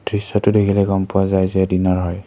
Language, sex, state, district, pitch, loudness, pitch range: Assamese, male, Assam, Kamrup Metropolitan, 95 Hz, -17 LUFS, 95-100 Hz